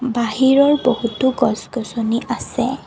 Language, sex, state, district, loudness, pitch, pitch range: Assamese, female, Assam, Kamrup Metropolitan, -18 LUFS, 240 Hz, 230-260 Hz